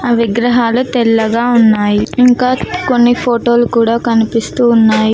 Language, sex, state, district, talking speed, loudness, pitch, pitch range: Telugu, female, Telangana, Mahabubabad, 115 wpm, -11 LUFS, 235 Hz, 225-245 Hz